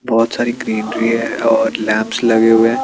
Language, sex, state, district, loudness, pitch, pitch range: Hindi, male, Chandigarh, Chandigarh, -15 LUFS, 115 Hz, 110-115 Hz